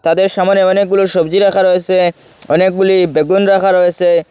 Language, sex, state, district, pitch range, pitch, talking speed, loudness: Bengali, male, Assam, Hailakandi, 175-195 Hz, 185 Hz, 125 wpm, -12 LUFS